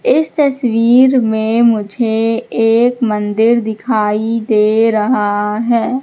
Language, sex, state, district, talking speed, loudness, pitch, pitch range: Hindi, female, Madhya Pradesh, Katni, 100 wpm, -13 LUFS, 225 Hz, 220-245 Hz